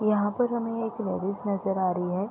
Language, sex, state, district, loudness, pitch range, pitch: Hindi, female, Bihar, East Champaran, -28 LUFS, 190-225 Hz, 205 Hz